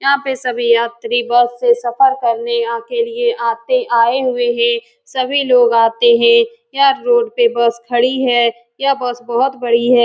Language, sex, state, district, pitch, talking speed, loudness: Hindi, female, Bihar, Saran, 260 Hz, 185 wpm, -14 LUFS